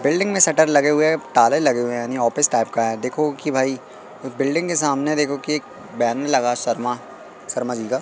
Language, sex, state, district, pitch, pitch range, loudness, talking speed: Hindi, male, Madhya Pradesh, Katni, 135 Hz, 120-150 Hz, -19 LUFS, 215 wpm